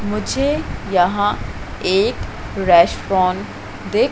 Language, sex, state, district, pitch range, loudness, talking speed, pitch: Hindi, female, Madhya Pradesh, Katni, 185-210 Hz, -18 LUFS, 75 wpm, 200 Hz